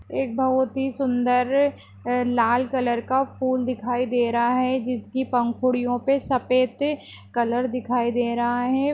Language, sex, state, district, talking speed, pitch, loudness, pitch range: Hindi, female, Maharashtra, Solapur, 140 wpm, 250 Hz, -23 LUFS, 240-260 Hz